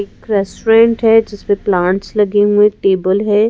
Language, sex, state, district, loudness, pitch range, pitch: Hindi, female, Madhya Pradesh, Bhopal, -13 LUFS, 200-220 Hz, 205 Hz